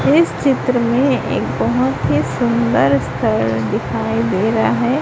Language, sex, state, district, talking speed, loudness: Hindi, female, Chhattisgarh, Raipur, 130 wpm, -16 LUFS